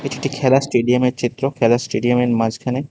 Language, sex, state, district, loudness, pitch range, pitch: Bengali, male, Tripura, West Tripura, -18 LUFS, 120-135 Hz, 125 Hz